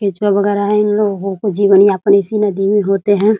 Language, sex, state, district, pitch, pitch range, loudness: Hindi, female, Bihar, Muzaffarpur, 200 Hz, 195-210 Hz, -13 LUFS